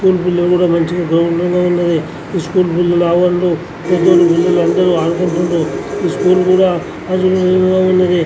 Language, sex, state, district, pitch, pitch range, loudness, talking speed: Telugu, male, Andhra Pradesh, Anantapur, 175 Hz, 170-185 Hz, -13 LUFS, 140 wpm